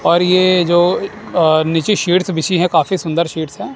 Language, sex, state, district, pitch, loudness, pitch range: Hindi, male, Punjab, Kapurthala, 175 Hz, -14 LUFS, 165-185 Hz